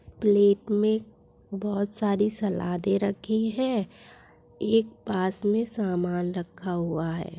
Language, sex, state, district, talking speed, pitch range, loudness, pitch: Hindi, female, Uttar Pradesh, Budaun, 115 wpm, 180-215 Hz, -26 LUFS, 200 Hz